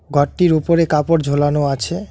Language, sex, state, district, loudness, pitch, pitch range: Bengali, male, West Bengal, Alipurduar, -16 LUFS, 155 Hz, 145-170 Hz